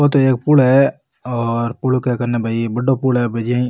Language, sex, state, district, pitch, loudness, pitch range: Rajasthani, male, Rajasthan, Nagaur, 125 Hz, -16 LUFS, 120-130 Hz